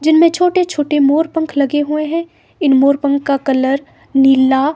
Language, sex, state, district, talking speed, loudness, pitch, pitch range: Hindi, female, Himachal Pradesh, Shimla, 165 wpm, -14 LUFS, 295 Hz, 275-320 Hz